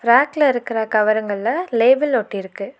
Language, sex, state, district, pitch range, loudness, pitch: Tamil, female, Tamil Nadu, Nilgiris, 215-265 Hz, -18 LUFS, 235 Hz